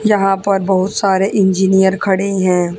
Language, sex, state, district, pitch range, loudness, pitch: Hindi, female, Haryana, Charkhi Dadri, 190-195 Hz, -14 LUFS, 195 Hz